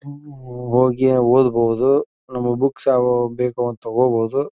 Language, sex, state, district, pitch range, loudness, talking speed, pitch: Kannada, male, Karnataka, Belgaum, 120-135 Hz, -18 LUFS, 95 wpm, 125 Hz